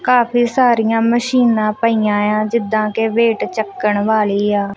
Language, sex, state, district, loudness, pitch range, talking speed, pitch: Punjabi, female, Punjab, Kapurthala, -15 LUFS, 210-235 Hz, 125 wpm, 225 Hz